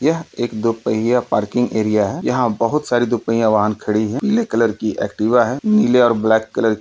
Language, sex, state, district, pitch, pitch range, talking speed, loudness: Hindi, male, Uttar Pradesh, Deoria, 115 Hz, 110-125 Hz, 205 wpm, -17 LUFS